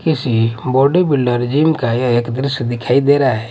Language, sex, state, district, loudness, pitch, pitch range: Hindi, male, Odisha, Malkangiri, -15 LUFS, 130 Hz, 120-140 Hz